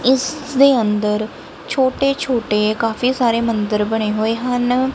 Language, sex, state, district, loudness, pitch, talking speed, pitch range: Punjabi, male, Punjab, Kapurthala, -17 LUFS, 240 Hz, 135 wpm, 215-260 Hz